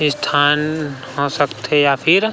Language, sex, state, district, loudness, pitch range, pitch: Chhattisgarhi, male, Chhattisgarh, Rajnandgaon, -17 LUFS, 140-150 Hz, 145 Hz